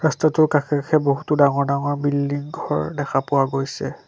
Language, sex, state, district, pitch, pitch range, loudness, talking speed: Assamese, male, Assam, Sonitpur, 145 Hz, 140-150 Hz, -20 LUFS, 160 wpm